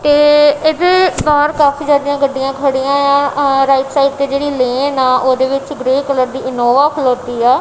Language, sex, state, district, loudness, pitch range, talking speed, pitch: Punjabi, female, Punjab, Kapurthala, -13 LUFS, 260-290 Hz, 190 wpm, 275 Hz